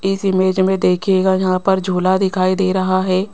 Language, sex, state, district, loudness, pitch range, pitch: Hindi, female, Rajasthan, Jaipur, -16 LUFS, 185-190 Hz, 190 Hz